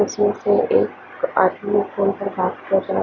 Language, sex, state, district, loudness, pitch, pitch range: Hindi, female, Chandigarh, Chandigarh, -20 LUFS, 200 Hz, 195-205 Hz